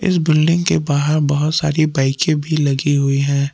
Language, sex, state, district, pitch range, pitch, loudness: Hindi, male, Jharkhand, Palamu, 140-155 Hz, 150 Hz, -16 LUFS